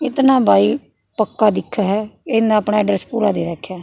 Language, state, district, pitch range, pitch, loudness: Haryanvi, Haryana, Rohtak, 185-225 Hz, 210 Hz, -17 LUFS